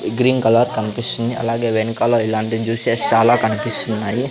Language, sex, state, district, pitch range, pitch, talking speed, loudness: Telugu, male, Andhra Pradesh, Sri Satya Sai, 110-120 Hz, 115 Hz, 125 wpm, -17 LUFS